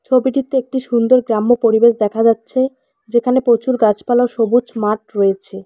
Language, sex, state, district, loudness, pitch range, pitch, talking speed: Bengali, female, West Bengal, Alipurduar, -15 LUFS, 220-255 Hz, 235 Hz, 150 wpm